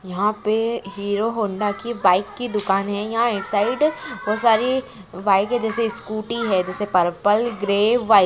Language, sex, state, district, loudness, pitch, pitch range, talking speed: Hindi, female, Andhra Pradesh, Chittoor, -21 LUFS, 210 Hz, 200-230 Hz, 165 wpm